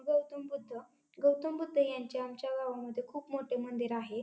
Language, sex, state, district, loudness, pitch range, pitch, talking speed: Marathi, female, Maharashtra, Pune, -35 LUFS, 245-285 Hz, 265 Hz, 155 wpm